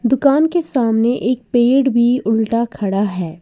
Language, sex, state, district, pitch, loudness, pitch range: Hindi, female, Uttar Pradesh, Lalitpur, 240 Hz, -16 LUFS, 220-260 Hz